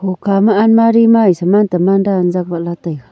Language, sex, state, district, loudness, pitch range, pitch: Wancho, female, Arunachal Pradesh, Longding, -12 LUFS, 175-210 Hz, 190 Hz